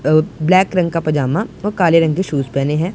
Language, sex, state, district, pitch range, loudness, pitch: Hindi, male, Punjab, Pathankot, 150-185 Hz, -16 LUFS, 165 Hz